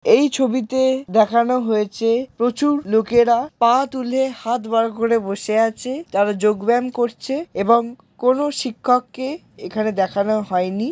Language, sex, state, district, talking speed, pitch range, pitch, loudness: Bengali, male, West Bengal, Jalpaiguri, 125 wpm, 220-260 Hz, 235 Hz, -19 LUFS